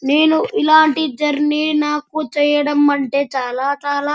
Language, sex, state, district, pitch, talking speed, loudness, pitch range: Telugu, male, Andhra Pradesh, Anantapur, 295 Hz, 130 wpm, -16 LUFS, 285-300 Hz